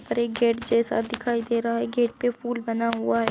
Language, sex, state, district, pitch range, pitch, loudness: Hindi, male, Uttar Pradesh, Etah, 230-240 Hz, 235 Hz, -25 LUFS